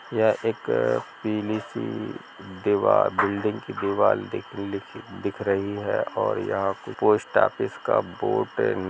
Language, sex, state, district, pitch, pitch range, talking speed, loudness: Hindi, male, Jharkhand, Jamtara, 100 Hz, 100-110 Hz, 140 wpm, -25 LUFS